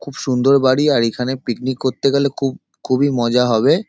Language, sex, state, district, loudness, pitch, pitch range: Bengali, male, West Bengal, Paschim Medinipur, -17 LUFS, 130 Hz, 125-140 Hz